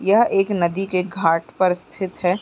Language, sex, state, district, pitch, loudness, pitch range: Hindi, female, Chhattisgarh, Raigarh, 185 Hz, -20 LUFS, 180-195 Hz